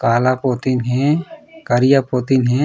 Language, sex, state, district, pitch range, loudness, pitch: Chhattisgarhi, male, Chhattisgarh, Raigarh, 125-145 Hz, -17 LUFS, 130 Hz